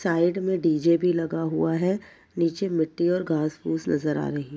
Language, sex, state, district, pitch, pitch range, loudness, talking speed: Hindi, male, Uttar Pradesh, Jyotiba Phule Nagar, 165 Hz, 150-180 Hz, -25 LUFS, 210 wpm